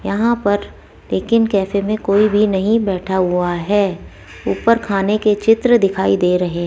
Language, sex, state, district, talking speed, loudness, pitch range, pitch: Hindi, female, Rajasthan, Jaipur, 180 wpm, -16 LUFS, 190-215 Hz, 200 Hz